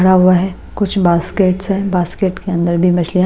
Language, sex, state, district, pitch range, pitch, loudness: Hindi, female, Odisha, Malkangiri, 175-190 Hz, 185 Hz, -15 LUFS